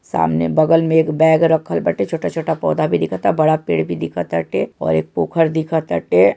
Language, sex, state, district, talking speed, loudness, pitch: Bhojpuri, male, Bihar, Saran, 215 wpm, -17 LUFS, 155 Hz